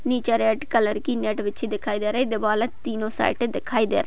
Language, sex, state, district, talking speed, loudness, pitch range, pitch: Hindi, female, Uttar Pradesh, Budaun, 250 wpm, -24 LUFS, 215-240 Hz, 220 Hz